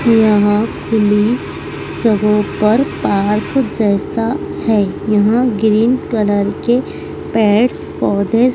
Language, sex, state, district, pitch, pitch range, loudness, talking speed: Hindi, female, Madhya Pradesh, Dhar, 215 Hz, 210-230 Hz, -15 LUFS, 90 wpm